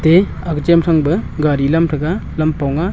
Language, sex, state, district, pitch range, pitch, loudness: Wancho, male, Arunachal Pradesh, Longding, 150-170 Hz, 160 Hz, -15 LUFS